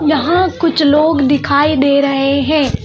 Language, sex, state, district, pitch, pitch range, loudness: Hindi, female, Madhya Pradesh, Bhopal, 290 Hz, 280-310 Hz, -12 LUFS